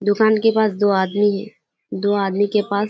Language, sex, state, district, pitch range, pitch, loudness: Hindi, female, Bihar, Kishanganj, 200-215 Hz, 205 Hz, -18 LUFS